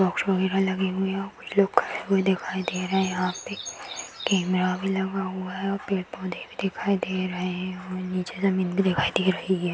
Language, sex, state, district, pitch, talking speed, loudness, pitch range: Hindi, female, Uttar Pradesh, Hamirpur, 190 Hz, 195 wpm, -26 LUFS, 185-195 Hz